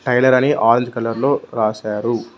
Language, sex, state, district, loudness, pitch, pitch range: Telugu, male, Telangana, Mahabubabad, -17 LUFS, 120 Hz, 115-130 Hz